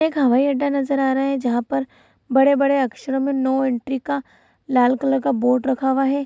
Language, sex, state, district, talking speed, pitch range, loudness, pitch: Hindi, female, Bihar, Saharsa, 210 wpm, 260-275 Hz, -20 LUFS, 270 Hz